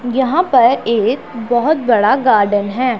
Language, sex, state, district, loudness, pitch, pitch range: Hindi, male, Punjab, Pathankot, -14 LUFS, 245 Hz, 225-265 Hz